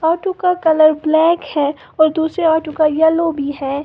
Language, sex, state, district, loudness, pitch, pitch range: Hindi, female, Uttar Pradesh, Lalitpur, -15 LUFS, 320 Hz, 305-330 Hz